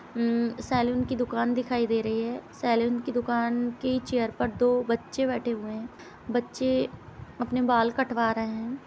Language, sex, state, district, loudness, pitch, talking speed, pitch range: Hindi, female, Uttar Pradesh, Etah, -27 LUFS, 240 Hz, 160 wpm, 235-250 Hz